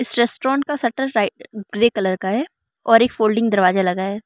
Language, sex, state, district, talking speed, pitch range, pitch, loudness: Hindi, female, Arunachal Pradesh, Lower Dibang Valley, 210 wpm, 200-240 Hz, 225 Hz, -18 LUFS